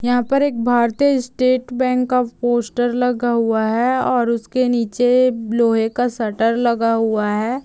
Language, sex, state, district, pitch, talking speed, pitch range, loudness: Hindi, female, Chhattisgarh, Korba, 240 Hz, 150 wpm, 230-250 Hz, -18 LUFS